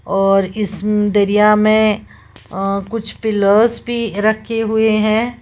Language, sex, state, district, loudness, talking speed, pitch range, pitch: Hindi, female, Uttar Pradesh, Lalitpur, -15 LUFS, 110 wpm, 200-220 Hz, 210 Hz